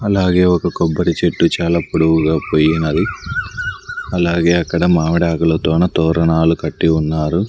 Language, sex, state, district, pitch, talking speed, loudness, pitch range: Telugu, male, Andhra Pradesh, Sri Satya Sai, 85 Hz, 105 wpm, -15 LUFS, 80-90 Hz